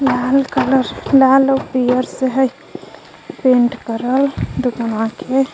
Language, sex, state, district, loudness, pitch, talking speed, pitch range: Magahi, female, Jharkhand, Palamu, -16 LUFS, 260 Hz, 120 wpm, 250-270 Hz